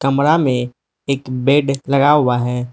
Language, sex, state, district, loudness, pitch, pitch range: Hindi, male, Manipur, Imphal West, -16 LUFS, 135 Hz, 125-140 Hz